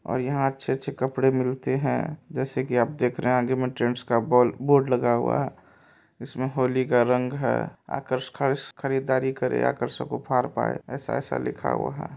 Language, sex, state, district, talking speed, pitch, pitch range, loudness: Maithili, male, Bihar, Supaul, 190 wpm, 130 Hz, 125-135 Hz, -25 LUFS